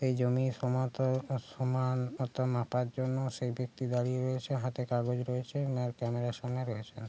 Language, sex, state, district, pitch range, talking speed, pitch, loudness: Bengali, male, West Bengal, Kolkata, 125-130 Hz, 150 wpm, 125 Hz, -34 LUFS